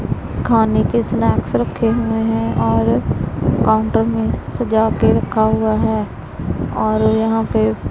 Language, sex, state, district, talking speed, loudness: Hindi, female, Punjab, Pathankot, 130 wpm, -17 LUFS